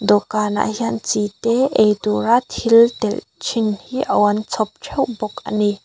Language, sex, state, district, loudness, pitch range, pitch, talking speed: Mizo, female, Mizoram, Aizawl, -18 LUFS, 210-230 Hz, 215 Hz, 165 wpm